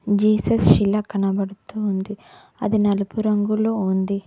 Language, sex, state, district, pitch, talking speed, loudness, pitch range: Telugu, female, Telangana, Mahabubabad, 205 Hz, 110 wpm, -20 LUFS, 195-215 Hz